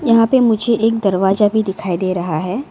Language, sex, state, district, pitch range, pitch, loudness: Hindi, female, Arunachal Pradesh, Lower Dibang Valley, 185-230 Hz, 210 Hz, -16 LUFS